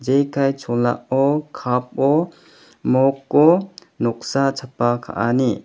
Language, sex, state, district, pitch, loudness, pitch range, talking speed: Garo, male, Meghalaya, West Garo Hills, 135 Hz, -19 LUFS, 120-140 Hz, 75 wpm